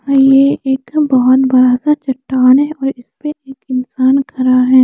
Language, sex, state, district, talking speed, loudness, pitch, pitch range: Hindi, female, Chandigarh, Chandigarh, 175 wpm, -12 LUFS, 265 Hz, 255-275 Hz